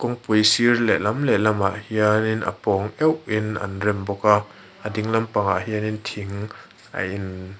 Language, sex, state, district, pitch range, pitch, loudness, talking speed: Mizo, male, Mizoram, Aizawl, 100-110 Hz, 105 Hz, -22 LUFS, 190 wpm